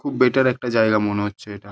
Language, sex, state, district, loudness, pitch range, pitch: Bengali, male, West Bengal, Paschim Medinipur, -20 LUFS, 105-125 Hz, 110 Hz